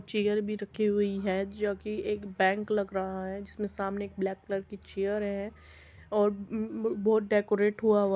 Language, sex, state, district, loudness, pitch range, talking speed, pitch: Hindi, female, Uttar Pradesh, Muzaffarnagar, -30 LUFS, 195-210 Hz, 200 wpm, 205 Hz